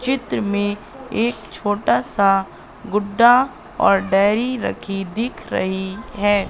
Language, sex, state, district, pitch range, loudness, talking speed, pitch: Hindi, female, Madhya Pradesh, Katni, 195-230 Hz, -19 LUFS, 110 wpm, 205 Hz